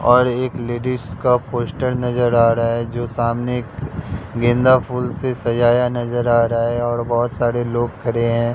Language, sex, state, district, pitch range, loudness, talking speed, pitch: Hindi, male, Bihar, Katihar, 115-125 Hz, -19 LUFS, 175 wpm, 120 Hz